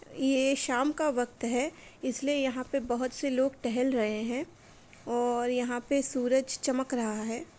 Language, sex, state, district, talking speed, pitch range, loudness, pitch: Hindi, female, Uttar Pradesh, Etah, 165 wpm, 245-270 Hz, -30 LUFS, 255 Hz